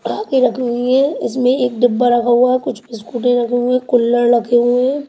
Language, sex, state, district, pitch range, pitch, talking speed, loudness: Hindi, female, Haryana, Rohtak, 240-255 Hz, 245 Hz, 210 wpm, -15 LUFS